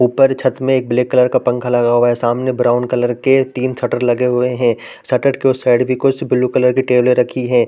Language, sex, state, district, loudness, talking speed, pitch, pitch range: Hindi, male, Chhattisgarh, Raigarh, -15 LUFS, 260 wpm, 125 Hz, 120-130 Hz